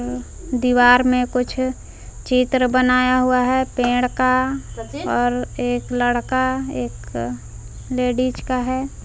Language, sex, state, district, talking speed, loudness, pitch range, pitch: Hindi, female, Jharkhand, Palamu, 105 wpm, -19 LUFS, 245-255 Hz, 250 Hz